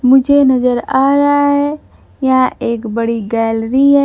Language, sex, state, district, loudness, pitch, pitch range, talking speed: Hindi, female, Bihar, Kaimur, -13 LUFS, 260 Hz, 230-280 Hz, 150 wpm